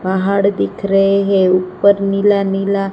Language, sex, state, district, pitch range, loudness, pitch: Hindi, female, Gujarat, Gandhinagar, 190-200 Hz, -14 LUFS, 195 Hz